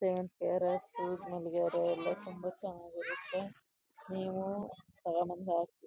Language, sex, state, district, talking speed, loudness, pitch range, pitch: Kannada, female, Karnataka, Chamarajanagar, 135 wpm, -37 LUFS, 175-190 Hz, 180 Hz